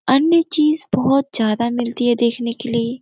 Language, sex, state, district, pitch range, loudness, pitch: Hindi, female, Uttar Pradesh, Gorakhpur, 235-275 Hz, -17 LUFS, 245 Hz